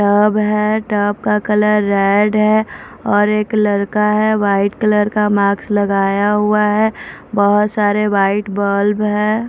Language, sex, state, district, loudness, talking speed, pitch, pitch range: Hindi, female, Maharashtra, Mumbai Suburban, -15 LUFS, 145 wpm, 210 Hz, 205-210 Hz